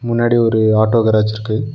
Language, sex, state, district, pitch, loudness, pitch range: Tamil, male, Tamil Nadu, Nilgiris, 110 Hz, -14 LUFS, 110-120 Hz